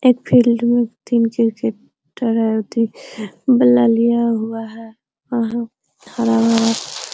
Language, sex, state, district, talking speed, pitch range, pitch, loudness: Hindi, female, Bihar, Araria, 145 wpm, 225-240 Hz, 230 Hz, -17 LUFS